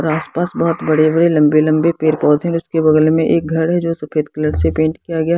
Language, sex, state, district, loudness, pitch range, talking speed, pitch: Hindi, female, Haryana, Jhajjar, -15 LUFS, 155-165 Hz, 255 wpm, 160 Hz